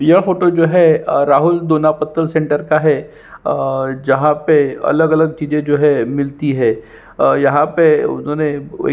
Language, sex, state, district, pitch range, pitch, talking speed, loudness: Hindi, male, Chhattisgarh, Sukma, 145-160 Hz, 150 Hz, 170 wpm, -14 LUFS